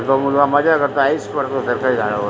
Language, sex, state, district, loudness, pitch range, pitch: Marathi, female, Maharashtra, Aurangabad, -17 LUFS, 135-145 Hz, 140 Hz